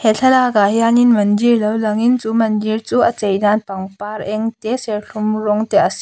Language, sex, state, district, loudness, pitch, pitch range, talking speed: Mizo, female, Mizoram, Aizawl, -16 LUFS, 215 Hz, 210-230 Hz, 200 wpm